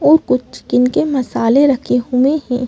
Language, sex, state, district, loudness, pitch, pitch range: Hindi, female, Madhya Pradesh, Bhopal, -14 LUFS, 255 Hz, 250-280 Hz